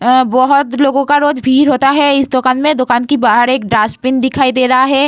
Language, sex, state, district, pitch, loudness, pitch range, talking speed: Hindi, female, Bihar, Vaishali, 260 Hz, -11 LUFS, 255-280 Hz, 235 wpm